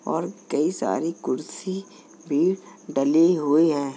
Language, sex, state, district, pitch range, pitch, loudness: Hindi, male, Uttar Pradesh, Jalaun, 145-180 Hz, 165 Hz, -24 LUFS